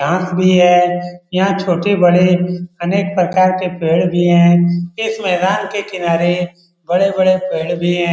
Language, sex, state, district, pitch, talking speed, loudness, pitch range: Hindi, male, Bihar, Lakhisarai, 180 Hz, 140 wpm, -14 LUFS, 175-185 Hz